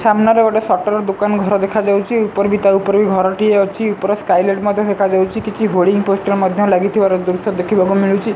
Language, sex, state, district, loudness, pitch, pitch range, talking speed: Odia, male, Odisha, Sambalpur, -15 LUFS, 200 Hz, 195-210 Hz, 185 wpm